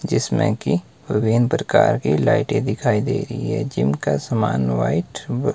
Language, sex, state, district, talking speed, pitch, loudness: Hindi, male, Himachal Pradesh, Shimla, 160 wpm, 105 Hz, -20 LUFS